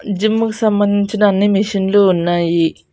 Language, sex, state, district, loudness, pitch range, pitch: Telugu, female, Andhra Pradesh, Annamaya, -15 LUFS, 190-210 Hz, 200 Hz